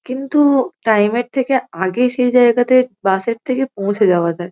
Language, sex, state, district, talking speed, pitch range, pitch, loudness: Bengali, female, West Bengal, North 24 Parganas, 170 wpm, 200-260 Hz, 245 Hz, -16 LUFS